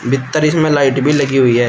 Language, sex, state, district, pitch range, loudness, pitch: Hindi, male, Uttar Pradesh, Shamli, 130-150 Hz, -13 LUFS, 135 Hz